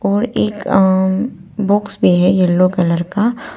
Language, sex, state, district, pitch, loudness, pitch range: Hindi, female, Arunachal Pradesh, Papum Pare, 190 Hz, -15 LUFS, 180-210 Hz